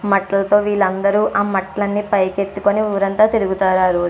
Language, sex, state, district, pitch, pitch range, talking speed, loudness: Telugu, female, Andhra Pradesh, Chittoor, 200 Hz, 195-205 Hz, 100 wpm, -17 LUFS